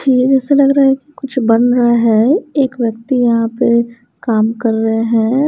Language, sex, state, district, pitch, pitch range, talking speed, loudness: Hindi, female, Haryana, Rohtak, 240 Hz, 230-270 Hz, 185 wpm, -13 LUFS